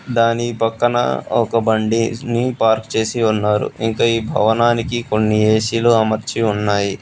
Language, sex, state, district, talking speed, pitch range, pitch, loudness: Telugu, male, Telangana, Hyderabad, 130 wpm, 110-115 Hz, 115 Hz, -17 LUFS